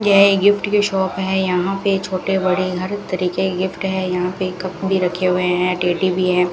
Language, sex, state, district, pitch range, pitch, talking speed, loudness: Hindi, female, Rajasthan, Bikaner, 180-195 Hz, 185 Hz, 230 wpm, -18 LUFS